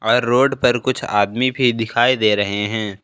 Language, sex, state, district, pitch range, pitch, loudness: Hindi, male, Jharkhand, Ranchi, 105-125 Hz, 115 Hz, -17 LUFS